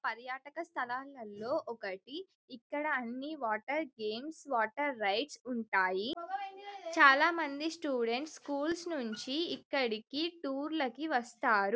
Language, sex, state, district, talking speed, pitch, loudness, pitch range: Telugu, female, Telangana, Karimnagar, 85 wpm, 280 Hz, -34 LUFS, 235-315 Hz